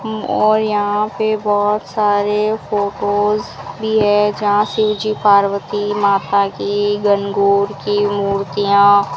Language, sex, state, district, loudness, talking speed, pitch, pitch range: Hindi, female, Rajasthan, Bikaner, -16 LUFS, 110 wpm, 205 Hz, 200-210 Hz